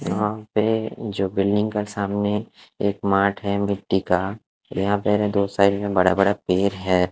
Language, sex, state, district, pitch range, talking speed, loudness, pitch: Hindi, male, Odisha, Khordha, 95-105 Hz, 160 wpm, -22 LUFS, 100 Hz